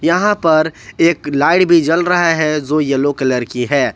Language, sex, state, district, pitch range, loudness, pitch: Hindi, male, Jharkhand, Ranchi, 140-170 Hz, -14 LUFS, 155 Hz